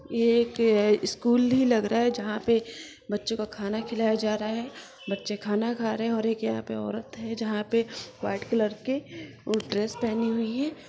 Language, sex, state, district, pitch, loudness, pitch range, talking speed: Hindi, female, Bihar, Saran, 225 Hz, -27 LUFS, 210-235 Hz, 205 wpm